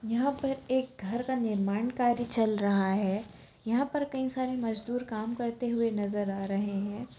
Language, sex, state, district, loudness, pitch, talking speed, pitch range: Kumaoni, female, Uttarakhand, Tehri Garhwal, -31 LUFS, 230 Hz, 185 wpm, 205-255 Hz